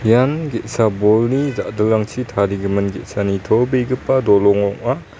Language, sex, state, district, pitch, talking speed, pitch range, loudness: Garo, male, Meghalaya, West Garo Hills, 110 Hz, 105 wpm, 100-125 Hz, -17 LUFS